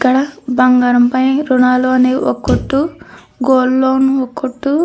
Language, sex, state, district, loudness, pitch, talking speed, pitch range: Telugu, female, Andhra Pradesh, Krishna, -13 LUFS, 260 Hz, 150 wpm, 255-270 Hz